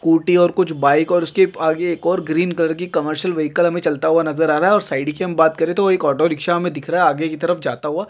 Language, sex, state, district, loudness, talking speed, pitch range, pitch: Hindi, male, Uttarakhand, Tehri Garhwal, -17 LUFS, 295 wpm, 160-175 Hz, 165 Hz